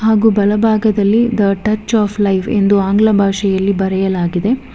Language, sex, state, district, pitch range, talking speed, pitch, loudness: Kannada, female, Karnataka, Bangalore, 195-220 Hz, 125 wpm, 205 Hz, -14 LUFS